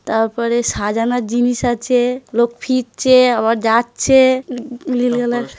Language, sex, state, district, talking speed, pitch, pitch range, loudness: Bengali, female, West Bengal, Paschim Medinipur, 75 wpm, 245 Hz, 235-255 Hz, -16 LUFS